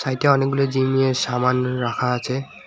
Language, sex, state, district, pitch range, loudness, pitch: Bengali, male, West Bengal, Alipurduar, 125-135 Hz, -20 LUFS, 130 Hz